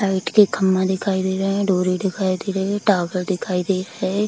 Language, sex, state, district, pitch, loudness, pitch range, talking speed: Hindi, female, Bihar, Kishanganj, 190 Hz, -20 LUFS, 185-195 Hz, 240 wpm